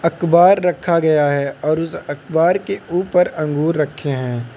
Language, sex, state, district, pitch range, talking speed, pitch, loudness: Hindi, male, Uttar Pradesh, Lucknow, 145-175 Hz, 155 wpm, 160 Hz, -17 LUFS